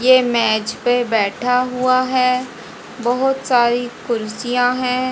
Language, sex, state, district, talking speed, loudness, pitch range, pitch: Hindi, female, Haryana, Jhajjar, 115 wpm, -17 LUFS, 240-255 Hz, 245 Hz